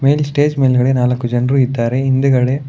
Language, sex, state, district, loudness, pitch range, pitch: Kannada, male, Karnataka, Bangalore, -14 LUFS, 125-135 Hz, 130 Hz